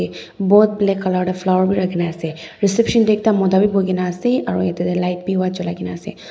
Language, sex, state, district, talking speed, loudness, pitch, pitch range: Nagamese, female, Nagaland, Dimapur, 200 wpm, -18 LUFS, 185 Hz, 175-200 Hz